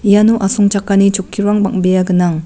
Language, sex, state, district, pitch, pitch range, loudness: Garo, female, Meghalaya, West Garo Hills, 195 Hz, 185-205 Hz, -13 LUFS